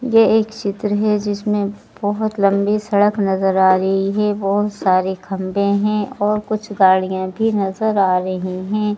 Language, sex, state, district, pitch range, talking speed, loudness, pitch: Hindi, female, Madhya Pradesh, Bhopal, 190-210 Hz, 160 wpm, -18 LUFS, 205 Hz